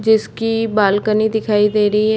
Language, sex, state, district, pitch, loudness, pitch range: Hindi, female, Chhattisgarh, Bastar, 215 Hz, -16 LUFS, 210-220 Hz